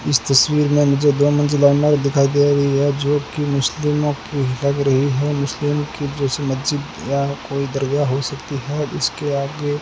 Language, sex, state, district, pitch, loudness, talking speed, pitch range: Hindi, male, Rajasthan, Bikaner, 140 Hz, -18 LUFS, 185 wpm, 140-145 Hz